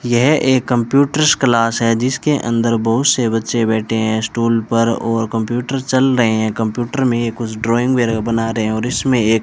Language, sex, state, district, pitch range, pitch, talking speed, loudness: Hindi, male, Rajasthan, Bikaner, 115-125 Hz, 115 Hz, 190 wpm, -16 LUFS